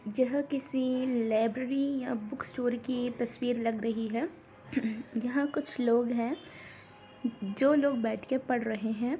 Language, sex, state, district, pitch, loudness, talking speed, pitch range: Hindi, female, Bihar, Darbhanga, 245 Hz, -31 LUFS, 145 wpm, 230-265 Hz